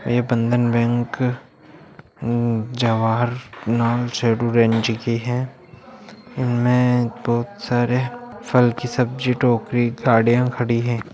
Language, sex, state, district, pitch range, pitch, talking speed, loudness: Hindi, male, Bihar, Bhagalpur, 115-125 Hz, 120 Hz, 95 wpm, -20 LUFS